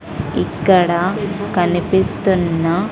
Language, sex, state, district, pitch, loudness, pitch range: Telugu, female, Andhra Pradesh, Sri Satya Sai, 185 Hz, -17 LUFS, 175-190 Hz